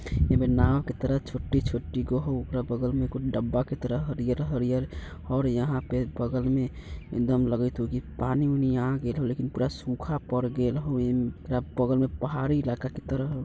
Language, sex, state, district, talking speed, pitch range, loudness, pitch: Bajjika, male, Bihar, Vaishali, 195 wpm, 125-130 Hz, -28 LUFS, 125 Hz